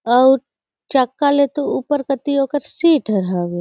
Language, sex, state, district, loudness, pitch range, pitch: Surgujia, female, Chhattisgarh, Sarguja, -17 LUFS, 245-285 Hz, 275 Hz